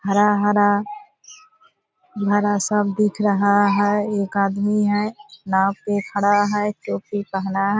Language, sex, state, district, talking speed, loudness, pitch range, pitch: Hindi, female, Bihar, Purnia, 145 wpm, -20 LUFS, 200-210 Hz, 205 Hz